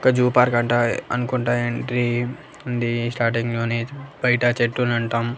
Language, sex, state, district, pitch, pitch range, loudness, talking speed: Telugu, male, Andhra Pradesh, Annamaya, 120 Hz, 120-125 Hz, -21 LUFS, 135 wpm